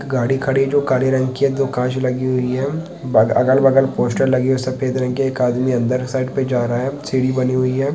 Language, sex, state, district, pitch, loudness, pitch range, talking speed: Hindi, male, Bihar, Sitamarhi, 130 Hz, -18 LUFS, 125-135 Hz, 250 wpm